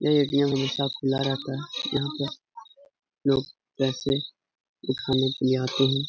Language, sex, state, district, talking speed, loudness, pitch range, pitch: Hindi, male, Bihar, Jahanabad, 155 wpm, -26 LUFS, 135-140 Hz, 135 Hz